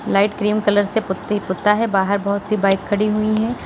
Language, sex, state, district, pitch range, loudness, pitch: Hindi, female, Uttar Pradesh, Lalitpur, 200-215 Hz, -18 LUFS, 205 Hz